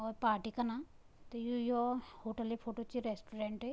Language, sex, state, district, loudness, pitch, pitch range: Garhwali, female, Uttarakhand, Tehri Garhwal, -39 LUFS, 230 Hz, 220-245 Hz